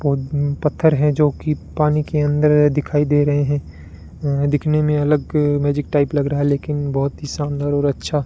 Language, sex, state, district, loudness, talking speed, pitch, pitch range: Hindi, male, Rajasthan, Bikaner, -18 LUFS, 190 wpm, 145 Hz, 145-150 Hz